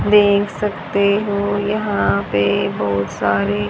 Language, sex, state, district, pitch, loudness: Hindi, male, Haryana, Jhajjar, 195 Hz, -18 LUFS